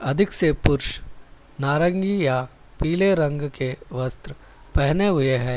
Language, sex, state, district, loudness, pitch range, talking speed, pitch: Hindi, male, Telangana, Hyderabad, -22 LUFS, 130-175 Hz, 95 wpm, 145 Hz